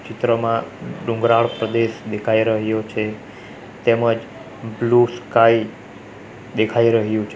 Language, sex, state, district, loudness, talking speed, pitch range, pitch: Gujarati, male, Gujarat, Valsad, -19 LUFS, 100 wpm, 110-115 Hz, 115 Hz